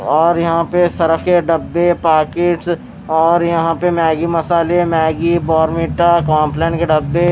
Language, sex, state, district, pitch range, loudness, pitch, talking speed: Hindi, male, Maharashtra, Mumbai Suburban, 160-170 Hz, -14 LUFS, 165 Hz, 140 wpm